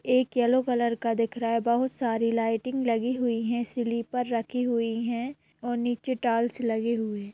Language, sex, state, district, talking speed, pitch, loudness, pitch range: Hindi, female, Bihar, Purnia, 190 wpm, 235 Hz, -27 LUFS, 230-245 Hz